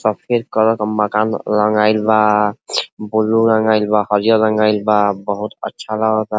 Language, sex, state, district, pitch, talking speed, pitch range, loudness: Bhojpuri, male, Uttar Pradesh, Ghazipur, 110 Hz, 130 wpm, 105-110 Hz, -16 LUFS